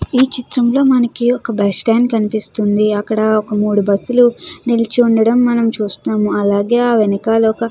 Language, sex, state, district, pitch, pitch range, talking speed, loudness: Telugu, female, Andhra Pradesh, Chittoor, 225 Hz, 210-245 Hz, 155 wpm, -14 LUFS